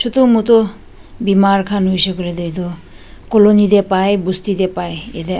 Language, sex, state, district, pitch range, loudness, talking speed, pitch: Nagamese, female, Nagaland, Dimapur, 185-210 Hz, -14 LUFS, 155 wpm, 195 Hz